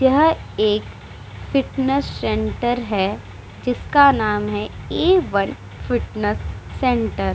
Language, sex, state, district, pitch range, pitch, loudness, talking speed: Hindi, female, Bihar, Vaishali, 210-275 Hz, 245 Hz, -20 LUFS, 100 wpm